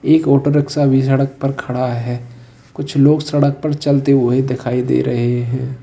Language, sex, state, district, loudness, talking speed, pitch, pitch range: Hindi, male, Uttar Pradesh, Lalitpur, -16 LUFS, 185 wpm, 135 Hz, 125-140 Hz